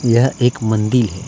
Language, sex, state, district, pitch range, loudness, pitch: Hindi, male, Jharkhand, Deoghar, 110-125 Hz, -16 LUFS, 120 Hz